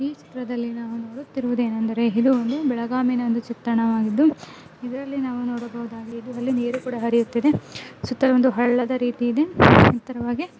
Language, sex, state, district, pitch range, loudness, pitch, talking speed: Kannada, female, Karnataka, Belgaum, 235-255 Hz, -21 LUFS, 245 Hz, 120 wpm